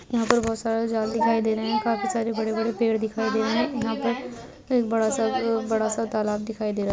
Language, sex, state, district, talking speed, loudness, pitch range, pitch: Hindi, female, Bihar, Bhagalpur, 250 wpm, -25 LUFS, 220-230 Hz, 225 Hz